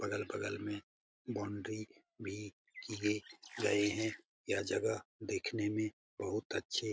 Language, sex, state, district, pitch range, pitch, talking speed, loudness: Hindi, male, Bihar, Lakhisarai, 105-110 Hz, 105 Hz, 140 wpm, -39 LUFS